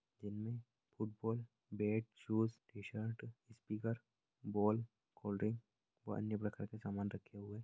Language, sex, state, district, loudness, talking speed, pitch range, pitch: Hindi, male, Uttar Pradesh, Jalaun, -43 LUFS, 125 wpm, 105-115 Hz, 110 Hz